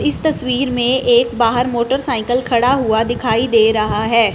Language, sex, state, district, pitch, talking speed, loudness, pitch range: Hindi, female, Punjab, Fazilka, 240 Hz, 165 wpm, -15 LUFS, 225-250 Hz